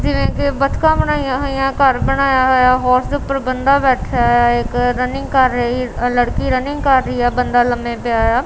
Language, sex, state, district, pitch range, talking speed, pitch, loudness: Punjabi, female, Punjab, Kapurthala, 245-270 Hz, 190 wpm, 255 Hz, -15 LUFS